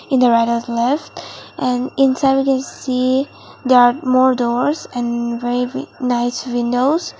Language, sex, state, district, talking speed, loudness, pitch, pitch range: English, female, Mizoram, Aizawl, 140 wpm, -17 LUFS, 250 Hz, 240-265 Hz